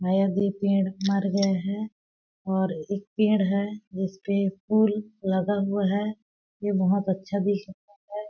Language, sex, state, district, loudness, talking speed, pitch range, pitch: Hindi, female, Chhattisgarh, Balrampur, -26 LUFS, 160 wpm, 190-205 Hz, 200 Hz